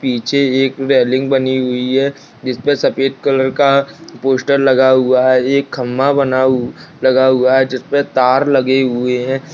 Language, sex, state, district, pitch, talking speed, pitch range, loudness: Hindi, male, Rajasthan, Nagaur, 130 Hz, 175 wpm, 130-135 Hz, -14 LUFS